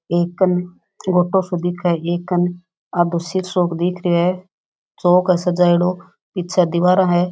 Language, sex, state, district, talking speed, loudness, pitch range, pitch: Rajasthani, female, Rajasthan, Nagaur, 115 wpm, -18 LUFS, 175-180 Hz, 180 Hz